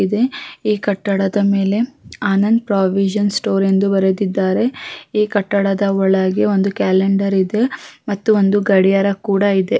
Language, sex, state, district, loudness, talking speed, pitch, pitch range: Kannada, female, Karnataka, Raichur, -16 LUFS, 115 wpm, 200 Hz, 195-210 Hz